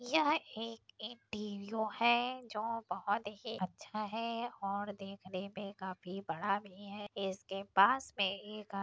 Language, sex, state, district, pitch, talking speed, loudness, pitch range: Hindi, female, Uttar Pradesh, Deoria, 205 Hz, 150 wpm, -37 LUFS, 195-225 Hz